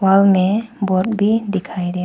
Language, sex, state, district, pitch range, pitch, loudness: Hindi, female, Arunachal Pradesh, Papum Pare, 185-210 Hz, 195 Hz, -17 LUFS